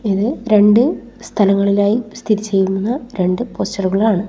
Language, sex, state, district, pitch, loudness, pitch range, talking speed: Malayalam, female, Kerala, Kasaragod, 210 Hz, -16 LUFS, 200-230 Hz, 110 wpm